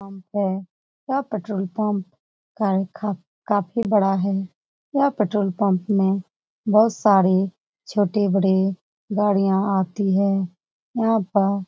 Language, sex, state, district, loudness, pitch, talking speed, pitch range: Hindi, female, Bihar, Lakhisarai, -22 LUFS, 200 Hz, 120 wpm, 190-210 Hz